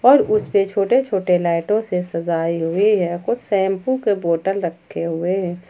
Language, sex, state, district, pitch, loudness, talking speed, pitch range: Hindi, female, Jharkhand, Ranchi, 190 Hz, -19 LUFS, 180 wpm, 170-210 Hz